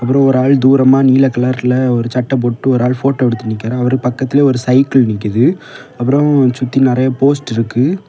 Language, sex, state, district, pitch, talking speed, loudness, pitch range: Tamil, male, Tamil Nadu, Kanyakumari, 130 Hz, 180 wpm, -12 LUFS, 125-135 Hz